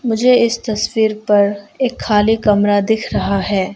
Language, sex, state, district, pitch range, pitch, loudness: Hindi, female, Arunachal Pradesh, Longding, 205-225 Hz, 210 Hz, -15 LUFS